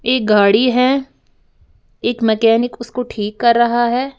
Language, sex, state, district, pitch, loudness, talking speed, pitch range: Hindi, female, Uttar Pradesh, Lalitpur, 235 Hz, -15 LUFS, 145 wpm, 225-250 Hz